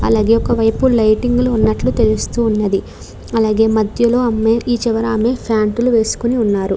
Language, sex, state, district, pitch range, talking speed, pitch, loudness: Telugu, female, Andhra Pradesh, Krishna, 215-235 Hz, 150 wpm, 225 Hz, -15 LUFS